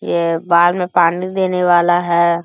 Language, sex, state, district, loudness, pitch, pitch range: Hindi, male, Bihar, Bhagalpur, -14 LUFS, 175 Hz, 170-180 Hz